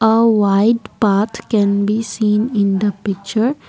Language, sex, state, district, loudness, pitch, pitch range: English, female, Assam, Kamrup Metropolitan, -16 LUFS, 215 Hz, 200-225 Hz